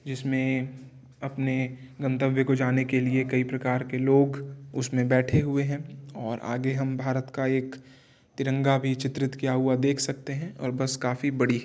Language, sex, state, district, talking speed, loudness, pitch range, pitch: Hindi, male, Uttar Pradesh, Varanasi, 175 wpm, -27 LUFS, 130-135 Hz, 130 Hz